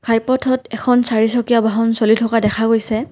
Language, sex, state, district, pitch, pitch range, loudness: Assamese, female, Assam, Kamrup Metropolitan, 230 Hz, 225-240 Hz, -16 LUFS